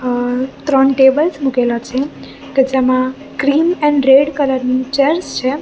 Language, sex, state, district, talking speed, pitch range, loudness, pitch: Gujarati, female, Gujarat, Gandhinagar, 150 wpm, 255-285 Hz, -14 LUFS, 270 Hz